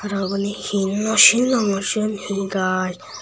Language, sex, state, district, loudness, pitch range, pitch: Chakma, male, Tripura, Unakoti, -19 LUFS, 195-215 Hz, 200 Hz